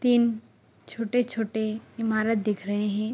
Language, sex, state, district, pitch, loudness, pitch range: Hindi, female, Bihar, Araria, 220 Hz, -27 LUFS, 210-230 Hz